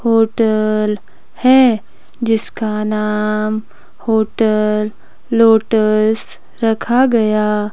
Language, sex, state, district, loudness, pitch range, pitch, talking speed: Hindi, female, Himachal Pradesh, Shimla, -15 LUFS, 215-225 Hz, 220 Hz, 60 wpm